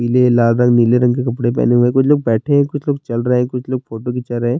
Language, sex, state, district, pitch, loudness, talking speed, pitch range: Urdu, male, Bihar, Saharsa, 125 Hz, -15 LUFS, 300 wpm, 120-130 Hz